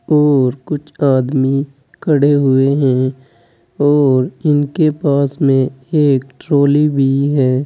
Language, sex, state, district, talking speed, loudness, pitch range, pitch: Hindi, male, Uttar Pradesh, Saharanpur, 110 wpm, -14 LUFS, 130-145 Hz, 140 Hz